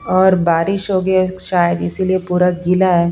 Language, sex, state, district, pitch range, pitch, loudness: Hindi, female, Punjab, Pathankot, 175-185 Hz, 185 Hz, -15 LUFS